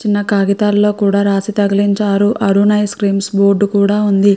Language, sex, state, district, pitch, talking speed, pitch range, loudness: Telugu, female, Andhra Pradesh, Chittoor, 200 Hz, 150 wpm, 200-205 Hz, -13 LUFS